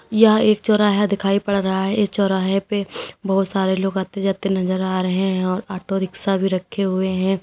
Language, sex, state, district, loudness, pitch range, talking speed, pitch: Hindi, female, Uttar Pradesh, Lalitpur, -20 LUFS, 190-200 Hz, 210 wpm, 195 Hz